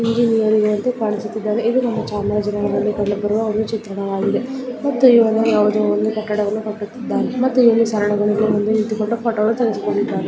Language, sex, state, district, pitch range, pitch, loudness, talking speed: Kannada, female, Karnataka, Chamarajanagar, 210-230 Hz, 215 Hz, -18 LUFS, 110 wpm